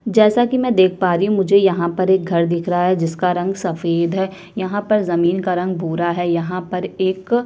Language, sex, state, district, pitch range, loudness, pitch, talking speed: Hindi, female, Chhattisgarh, Kabirdham, 175-195 Hz, -18 LUFS, 185 Hz, 235 wpm